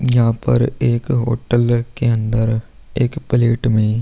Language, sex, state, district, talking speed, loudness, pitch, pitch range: Hindi, male, Uttar Pradesh, Hamirpur, 150 wpm, -17 LUFS, 120 Hz, 115-120 Hz